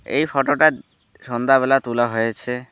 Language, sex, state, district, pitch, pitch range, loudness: Bengali, male, West Bengal, Alipurduar, 130 Hz, 120-135 Hz, -19 LUFS